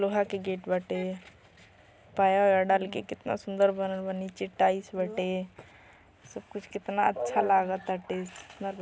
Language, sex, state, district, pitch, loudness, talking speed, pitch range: Bhojpuri, female, Uttar Pradesh, Gorakhpur, 190 Hz, -29 LUFS, 150 wpm, 185-195 Hz